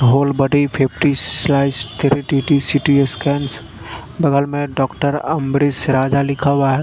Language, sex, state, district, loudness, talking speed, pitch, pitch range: Hindi, male, Punjab, Fazilka, -17 LUFS, 140 wpm, 140 Hz, 135-145 Hz